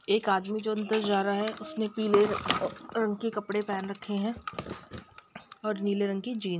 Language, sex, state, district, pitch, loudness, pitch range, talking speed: Hindi, female, Bihar, Gopalganj, 210 Hz, -29 LUFS, 200-215 Hz, 190 wpm